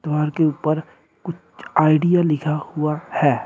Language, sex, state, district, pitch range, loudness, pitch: Hindi, male, Uttar Pradesh, Shamli, 150-165 Hz, -20 LUFS, 155 Hz